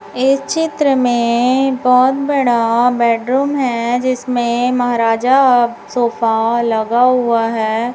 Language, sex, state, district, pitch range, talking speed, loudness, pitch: Hindi, female, Chhattisgarh, Raipur, 235-260 Hz, 100 wpm, -14 LUFS, 245 Hz